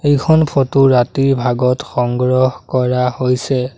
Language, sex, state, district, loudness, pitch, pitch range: Assamese, male, Assam, Sonitpur, -15 LUFS, 130 Hz, 125-135 Hz